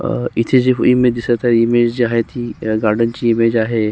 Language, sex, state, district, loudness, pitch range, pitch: Marathi, male, Maharashtra, Solapur, -15 LUFS, 115-120 Hz, 115 Hz